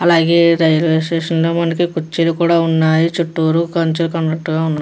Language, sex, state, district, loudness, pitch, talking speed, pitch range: Telugu, female, Andhra Pradesh, Chittoor, -15 LUFS, 165 Hz, 150 wpm, 160-170 Hz